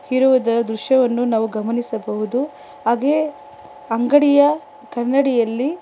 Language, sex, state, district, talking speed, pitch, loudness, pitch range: Kannada, female, Karnataka, Bangalore, 80 wpm, 240 Hz, -18 LUFS, 225-280 Hz